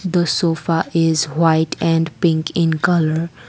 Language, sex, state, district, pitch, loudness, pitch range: English, female, Assam, Kamrup Metropolitan, 165 Hz, -17 LUFS, 160-170 Hz